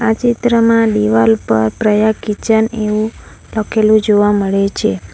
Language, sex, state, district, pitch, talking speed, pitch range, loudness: Gujarati, female, Gujarat, Valsad, 215 Hz, 130 wpm, 195-220 Hz, -13 LUFS